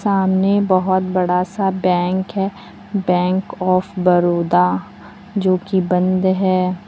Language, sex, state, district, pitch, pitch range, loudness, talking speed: Hindi, female, Uttar Pradesh, Lucknow, 185 Hz, 180-195 Hz, -17 LUFS, 105 wpm